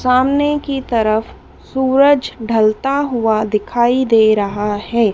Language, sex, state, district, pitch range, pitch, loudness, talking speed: Hindi, female, Madhya Pradesh, Dhar, 215-265 Hz, 235 Hz, -15 LUFS, 115 wpm